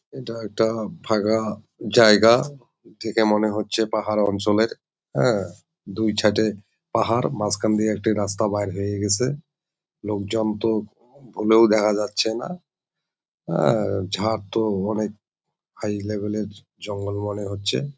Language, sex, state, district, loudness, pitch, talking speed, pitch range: Bengali, male, West Bengal, Jalpaiguri, -22 LUFS, 105 Hz, 125 wpm, 105-110 Hz